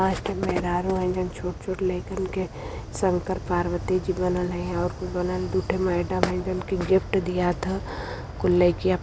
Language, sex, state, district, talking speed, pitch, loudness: Bhojpuri, female, Uttar Pradesh, Varanasi, 135 wpm, 180 Hz, -26 LUFS